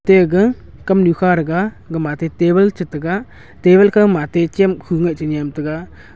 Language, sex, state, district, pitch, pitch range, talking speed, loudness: Wancho, male, Arunachal Pradesh, Longding, 175 Hz, 160-190 Hz, 185 wpm, -15 LUFS